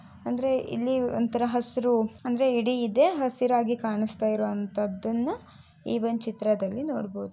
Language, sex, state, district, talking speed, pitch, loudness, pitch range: Kannada, female, Karnataka, Shimoga, 125 wpm, 235 Hz, -27 LUFS, 215-250 Hz